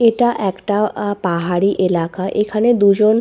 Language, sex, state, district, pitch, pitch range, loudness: Bengali, female, West Bengal, Purulia, 205 Hz, 190-215 Hz, -16 LUFS